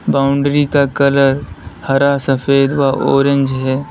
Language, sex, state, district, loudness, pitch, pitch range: Hindi, male, Uttar Pradesh, Lalitpur, -14 LUFS, 140 Hz, 135-140 Hz